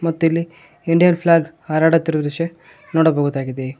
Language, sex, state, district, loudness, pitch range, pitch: Kannada, male, Karnataka, Koppal, -18 LUFS, 155-165 Hz, 165 Hz